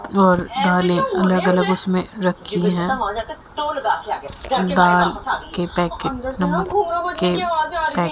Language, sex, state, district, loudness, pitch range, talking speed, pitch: Hindi, female, Haryana, Jhajjar, -19 LUFS, 180-260 Hz, 105 wpm, 185 Hz